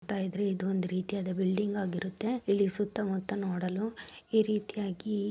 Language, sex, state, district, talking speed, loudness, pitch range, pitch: Kannada, female, Karnataka, Mysore, 160 wpm, -32 LUFS, 185-205 Hz, 200 Hz